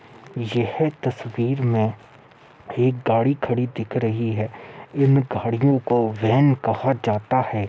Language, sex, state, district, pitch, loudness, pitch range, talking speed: Hindi, male, Uttar Pradesh, Muzaffarnagar, 120 Hz, -22 LUFS, 115-130 Hz, 125 wpm